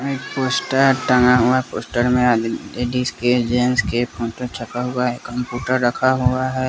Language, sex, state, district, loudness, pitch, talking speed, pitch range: Hindi, male, Bihar, West Champaran, -19 LUFS, 125 Hz, 160 wpm, 120-130 Hz